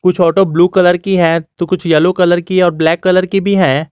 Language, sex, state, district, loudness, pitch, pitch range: Hindi, male, Jharkhand, Garhwa, -12 LUFS, 180 Hz, 165-185 Hz